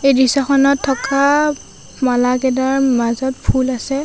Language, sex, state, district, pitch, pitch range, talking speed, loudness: Assamese, female, Assam, Sonitpur, 265 Hz, 260-275 Hz, 105 wpm, -16 LUFS